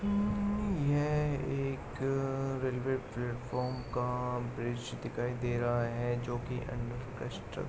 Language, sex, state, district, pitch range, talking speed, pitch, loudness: Hindi, male, Uttar Pradesh, Jalaun, 120-135 Hz, 110 wpm, 125 Hz, -35 LUFS